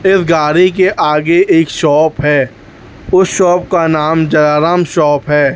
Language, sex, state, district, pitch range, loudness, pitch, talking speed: Hindi, male, Chhattisgarh, Raipur, 150-180 Hz, -11 LUFS, 160 Hz, 150 wpm